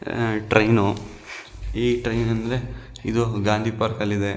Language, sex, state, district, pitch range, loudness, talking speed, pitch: Kannada, male, Karnataka, Shimoga, 105-120 Hz, -23 LUFS, 135 wpm, 110 Hz